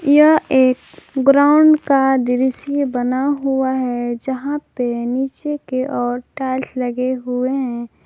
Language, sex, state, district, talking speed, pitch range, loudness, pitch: Hindi, male, Jharkhand, Garhwa, 125 wpm, 250-280 Hz, -17 LUFS, 260 Hz